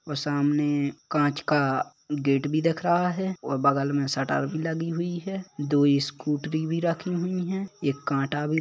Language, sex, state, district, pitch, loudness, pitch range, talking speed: Hindi, male, Chhattisgarh, Kabirdham, 150 Hz, -26 LUFS, 140-170 Hz, 190 wpm